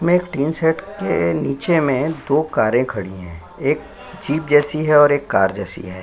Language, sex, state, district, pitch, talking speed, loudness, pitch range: Hindi, male, Chhattisgarh, Sukma, 145 Hz, 200 wpm, -18 LUFS, 100-155 Hz